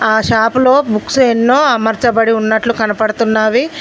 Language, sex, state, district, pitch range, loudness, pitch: Telugu, female, Telangana, Mahabubabad, 220-250 Hz, -12 LUFS, 225 Hz